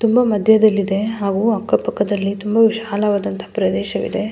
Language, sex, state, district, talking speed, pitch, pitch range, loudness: Kannada, female, Karnataka, Mysore, 140 wpm, 210 Hz, 200-225 Hz, -17 LUFS